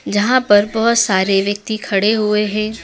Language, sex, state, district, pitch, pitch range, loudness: Hindi, female, Madhya Pradesh, Dhar, 210 Hz, 205-220 Hz, -15 LUFS